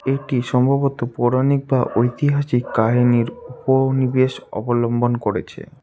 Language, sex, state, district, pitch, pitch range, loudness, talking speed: Bengali, male, West Bengal, Alipurduar, 130 Hz, 120-135 Hz, -19 LUFS, 95 wpm